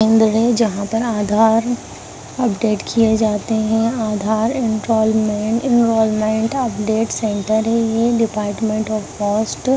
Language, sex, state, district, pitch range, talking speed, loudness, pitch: Hindi, female, Bihar, Jahanabad, 215-230 Hz, 125 wpm, -17 LUFS, 220 Hz